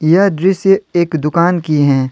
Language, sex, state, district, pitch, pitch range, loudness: Hindi, male, Jharkhand, Deoghar, 170 Hz, 155-190 Hz, -13 LUFS